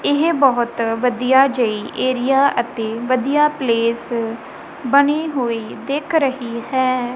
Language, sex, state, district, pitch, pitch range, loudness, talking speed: Punjabi, female, Punjab, Kapurthala, 255 Hz, 235-275 Hz, -18 LUFS, 110 wpm